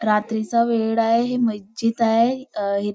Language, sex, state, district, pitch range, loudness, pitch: Marathi, female, Maharashtra, Nagpur, 215-235 Hz, -21 LUFS, 225 Hz